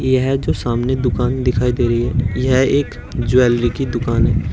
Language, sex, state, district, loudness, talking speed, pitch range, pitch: Hindi, male, Uttar Pradesh, Shamli, -17 LUFS, 185 wpm, 120-130 Hz, 125 Hz